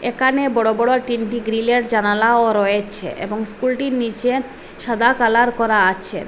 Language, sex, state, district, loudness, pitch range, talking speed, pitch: Bengali, female, Assam, Hailakandi, -17 LUFS, 215-245 Hz, 135 wpm, 230 Hz